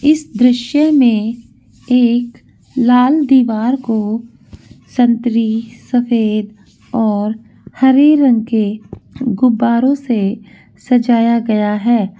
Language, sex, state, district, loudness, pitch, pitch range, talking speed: Hindi, female, Bihar, Saharsa, -14 LUFS, 235 Hz, 220-250 Hz, 90 wpm